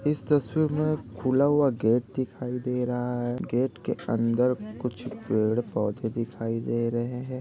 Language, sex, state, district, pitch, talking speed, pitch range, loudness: Hindi, male, Chhattisgarh, Bastar, 125 Hz, 170 wpm, 115-130 Hz, -27 LUFS